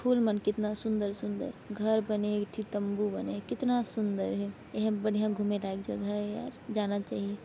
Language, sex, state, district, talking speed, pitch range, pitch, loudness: Chhattisgarhi, female, Chhattisgarh, Raigarh, 185 wpm, 205-215 Hz, 210 Hz, -32 LUFS